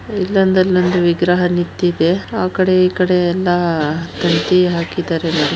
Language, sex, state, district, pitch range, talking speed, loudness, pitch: Kannada, female, Karnataka, Shimoga, 170-185 Hz, 130 wpm, -15 LUFS, 180 Hz